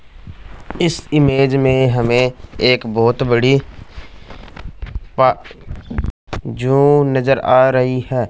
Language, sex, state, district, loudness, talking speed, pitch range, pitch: Hindi, male, Punjab, Fazilka, -15 LUFS, 95 wpm, 105-135 Hz, 125 Hz